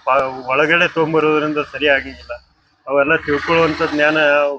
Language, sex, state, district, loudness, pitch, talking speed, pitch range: Kannada, male, Karnataka, Bijapur, -15 LUFS, 150 Hz, 130 wpm, 140-155 Hz